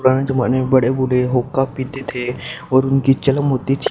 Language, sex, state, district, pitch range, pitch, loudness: Hindi, male, Haryana, Jhajjar, 125-135 Hz, 130 Hz, -17 LUFS